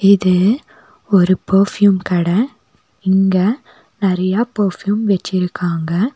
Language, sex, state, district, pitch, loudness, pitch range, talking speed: Tamil, female, Tamil Nadu, Nilgiris, 195 Hz, -16 LUFS, 185-210 Hz, 80 wpm